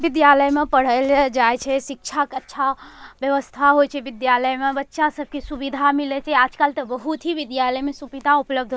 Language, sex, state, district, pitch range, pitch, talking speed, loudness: Angika, female, Bihar, Bhagalpur, 265-285 Hz, 275 Hz, 200 wpm, -20 LUFS